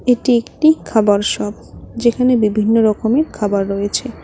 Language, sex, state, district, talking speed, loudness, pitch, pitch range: Bengali, female, West Bengal, Cooch Behar, 125 wpm, -16 LUFS, 220 Hz, 205-245 Hz